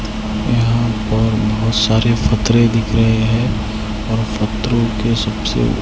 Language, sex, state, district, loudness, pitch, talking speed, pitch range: Hindi, male, Maharashtra, Washim, -16 LUFS, 110 Hz, 125 wpm, 110-115 Hz